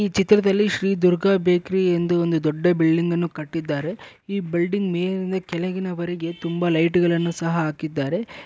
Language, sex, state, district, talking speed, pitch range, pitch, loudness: Kannada, male, Karnataka, Bellary, 135 wpm, 170-190 Hz, 175 Hz, -22 LUFS